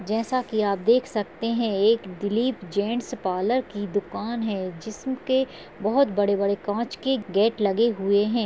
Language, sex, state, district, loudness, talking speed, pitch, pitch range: Hindi, female, Chhattisgarh, Raigarh, -25 LUFS, 170 wpm, 220 Hz, 200-235 Hz